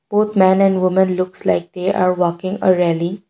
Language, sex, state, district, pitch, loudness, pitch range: English, female, Assam, Kamrup Metropolitan, 185 Hz, -16 LUFS, 180-190 Hz